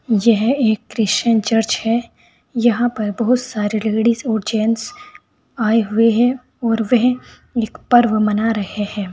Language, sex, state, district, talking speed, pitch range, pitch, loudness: Hindi, female, Uttar Pradesh, Saharanpur, 145 wpm, 215-240 Hz, 225 Hz, -17 LUFS